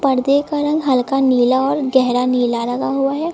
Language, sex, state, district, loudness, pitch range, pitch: Hindi, female, Uttar Pradesh, Lucknow, -16 LUFS, 250-280 Hz, 265 Hz